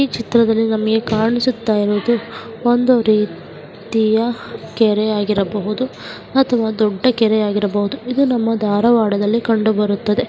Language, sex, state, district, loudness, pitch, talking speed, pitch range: Kannada, female, Karnataka, Dharwad, -17 LUFS, 225 Hz, 95 wpm, 210-235 Hz